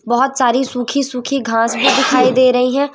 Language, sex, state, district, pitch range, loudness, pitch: Hindi, female, Madhya Pradesh, Umaria, 245-270 Hz, -14 LUFS, 255 Hz